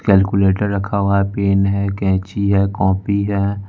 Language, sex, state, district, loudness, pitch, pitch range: Hindi, male, Bihar, West Champaran, -17 LUFS, 100 Hz, 95-100 Hz